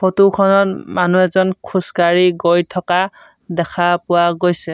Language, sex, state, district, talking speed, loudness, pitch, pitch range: Assamese, male, Assam, Sonitpur, 125 wpm, -15 LUFS, 180 Hz, 175-190 Hz